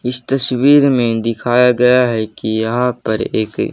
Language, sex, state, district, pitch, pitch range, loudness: Hindi, male, Haryana, Jhajjar, 125 Hz, 115-125 Hz, -14 LUFS